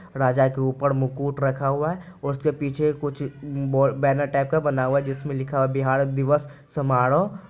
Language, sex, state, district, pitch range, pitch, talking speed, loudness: Hindi, male, Bihar, Purnia, 135-145 Hz, 140 Hz, 190 wpm, -23 LUFS